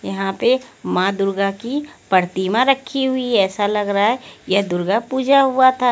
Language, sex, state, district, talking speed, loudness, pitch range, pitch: Hindi, female, Haryana, Rohtak, 180 wpm, -18 LUFS, 195-260 Hz, 215 Hz